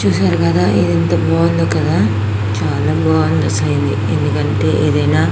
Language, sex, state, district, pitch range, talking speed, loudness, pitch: Telugu, female, Telangana, Karimnagar, 85-105 Hz, 115 wpm, -15 LUFS, 100 Hz